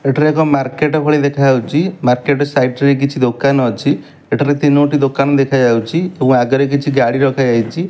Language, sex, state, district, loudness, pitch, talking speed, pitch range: Odia, male, Odisha, Malkangiri, -14 LUFS, 140 Hz, 160 wpm, 130-145 Hz